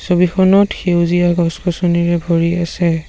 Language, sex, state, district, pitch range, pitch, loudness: Assamese, male, Assam, Sonitpur, 170-180 Hz, 175 Hz, -15 LUFS